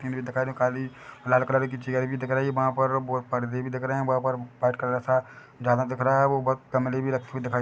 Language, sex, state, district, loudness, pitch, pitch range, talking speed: Hindi, male, Chhattisgarh, Bilaspur, -26 LUFS, 130 Hz, 125-130 Hz, 260 wpm